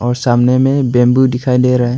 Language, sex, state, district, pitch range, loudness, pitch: Hindi, male, Arunachal Pradesh, Longding, 120-130 Hz, -12 LUFS, 125 Hz